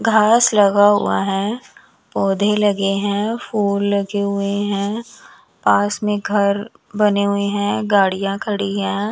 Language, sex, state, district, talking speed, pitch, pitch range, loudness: Hindi, female, Chandigarh, Chandigarh, 130 wpm, 205 Hz, 200-210 Hz, -18 LUFS